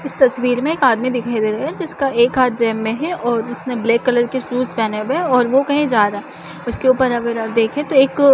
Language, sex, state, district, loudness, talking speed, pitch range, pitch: Chhattisgarhi, female, Chhattisgarh, Jashpur, -17 LUFS, 260 wpm, 230-265 Hz, 245 Hz